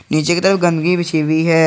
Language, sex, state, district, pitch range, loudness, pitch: Hindi, male, Jharkhand, Garhwa, 160-175 Hz, -15 LUFS, 165 Hz